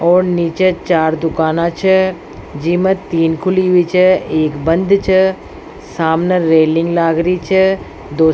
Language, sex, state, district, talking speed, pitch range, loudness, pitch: Rajasthani, female, Rajasthan, Nagaur, 145 wpm, 165-185 Hz, -14 LUFS, 170 Hz